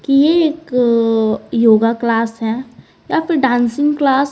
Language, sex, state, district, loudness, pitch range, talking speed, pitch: Hindi, female, Bihar, Patna, -15 LUFS, 230-280 Hz, 150 wpm, 245 Hz